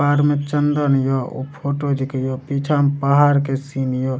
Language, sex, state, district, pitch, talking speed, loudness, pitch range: Maithili, male, Bihar, Supaul, 140 Hz, 200 wpm, -19 LUFS, 135-145 Hz